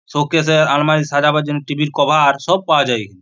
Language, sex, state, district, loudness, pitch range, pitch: Bengali, male, West Bengal, Purulia, -15 LUFS, 145-155 Hz, 150 Hz